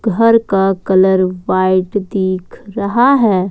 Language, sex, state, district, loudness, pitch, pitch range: Hindi, female, Jharkhand, Ranchi, -14 LUFS, 195 Hz, 185-220 Hz